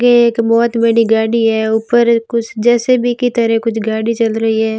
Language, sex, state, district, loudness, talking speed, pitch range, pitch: Hindi, female, Rajasthan, Barmer, -13 LUFS, 200 wpm, 225-235 Hz, 230 Hz